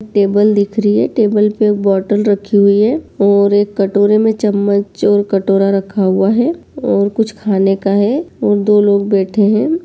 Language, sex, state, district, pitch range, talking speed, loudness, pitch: Hindi, male, Bihar, Kishanganj, 200-215 Hz, 185 wpm, -13 LUFS, 205 Hz